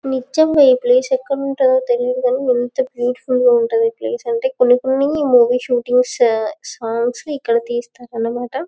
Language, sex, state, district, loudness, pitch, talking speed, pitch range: Telugu, female, Telangana, Karimnagar, -16 LUFS, 255 Hz, 140 wpm, 245-275 Hz